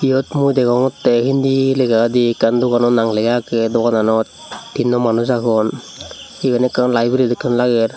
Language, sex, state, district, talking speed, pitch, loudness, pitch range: Chakma, male, Tripura, Unakoti, 145 wpm, 120 Hz, -16 LUFS, 115-130 Hz